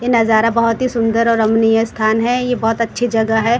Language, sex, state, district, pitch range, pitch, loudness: Hindi, female, Maharashtra, Gondia, 225-235 Hz, 230 Hz, -15 LUFS